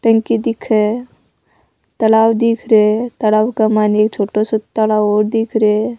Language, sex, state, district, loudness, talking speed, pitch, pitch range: Rajasthani, female, Rajasthan, Nagaur, -14 LUFS, 160 wpm, 220 Hz, 215-230 Hz